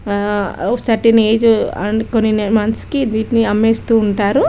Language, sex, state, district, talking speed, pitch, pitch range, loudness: Telugu, female, Telangana, Karimnagar, 120 wpm, 220 Hz, 210-230 Hz, -15 LUFS